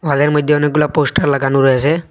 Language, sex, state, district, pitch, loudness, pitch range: Bengali, male, Assam, Hailakandi, 150 Hz, -14 LUFS, 140-150 Hz